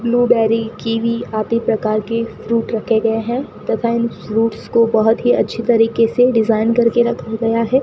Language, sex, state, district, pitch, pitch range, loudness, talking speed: Hindi, female, Rajasthan, Bikaner, 230 Hz, 225-235 Hz, -16 LUFS, 175 wpm